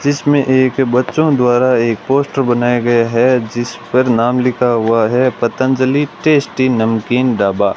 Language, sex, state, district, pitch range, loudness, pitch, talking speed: Hindi, male, Rajasthan, Bikaner, 120-130 Hz, -13 LUFS, 125 Hz, 145 wpm